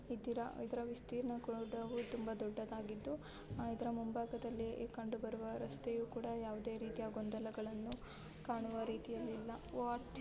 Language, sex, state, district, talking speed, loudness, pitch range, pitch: Kannada, female, Karnataka, Bellary, 115 wpm, -45 LUFS, 225-240 Hz, 230 Hz